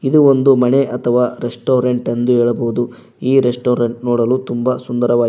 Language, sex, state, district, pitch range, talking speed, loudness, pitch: Kannada, male, Karnataka, Koppal, 120-130 Hz, 135 wpm, -15 LUFS, 125 Hz